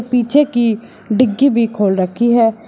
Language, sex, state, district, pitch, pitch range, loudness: Hindi, male, Uttar Pradesh, Shamli, 230 Hz, 220-245 Hz, -14 LUFS